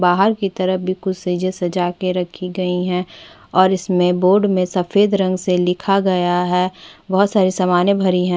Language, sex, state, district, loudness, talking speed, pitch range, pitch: Hindi, female, Chhattisgarh, Bastar, -17 LUFS, 185 wpm, 180-190 Hz, 185 Hz